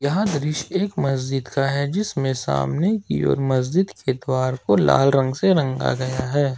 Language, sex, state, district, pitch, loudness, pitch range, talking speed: Hindi, male, Jharkhand, Ranchi, 135 Hz, -21 LUFS, 130-170 Hz, 180 wpm